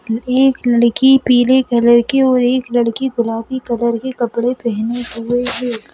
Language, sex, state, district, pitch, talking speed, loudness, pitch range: Hindi, female, Madhya Pradesh, Bhopal, 245 Hz, 150 wpm, -15 LUFS, 235-255 Hz